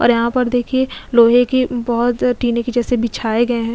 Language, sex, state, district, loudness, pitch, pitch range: Hindi, female, Goa, North and South Goa, -16 LUFS, 240 Hz, 235-245 Hz